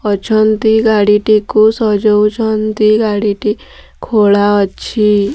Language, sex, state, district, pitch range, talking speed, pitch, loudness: Odia, female, Odisha, Sambalpur, 205-220 Hz, 80 wpm, 215 Hz, -12 LUFS